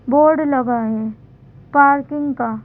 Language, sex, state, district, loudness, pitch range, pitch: Hindi, female, Madhya Pradesh, Bhopal, -16 LUFS, 235-290 Hz, 275 Hz